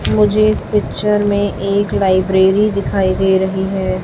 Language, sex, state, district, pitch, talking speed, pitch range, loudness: Hindi, female, Chhattisgarh, Raipur, 195 Hz, 150 wpm, 190-210 Hz, -15 LUFS